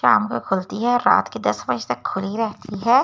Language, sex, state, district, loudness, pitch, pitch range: Hindi, female, Delhi, New Delhi, -21 LUFS, 220 Hz, 200-245 Hz